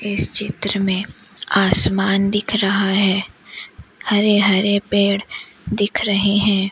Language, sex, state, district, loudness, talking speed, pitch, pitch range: Hindi, female, Madhya Pradesh, Umaria, -17 LUFS, 115 wpm, 200 Hz, 195-205 Hz